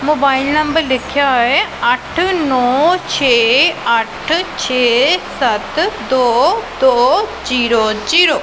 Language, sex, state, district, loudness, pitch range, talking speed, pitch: Punjabi, female, Punjab, Pathankot, -13 LUFS, 245-325 Hz, 105 wpm, 270 Hz